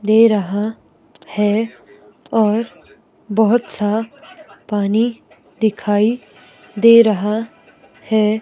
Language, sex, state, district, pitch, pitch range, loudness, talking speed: Hindi, female, Himachal Pradesh, Shimla, 220 Hz, 210-230 Hz, -17 LUFS, 80 wpm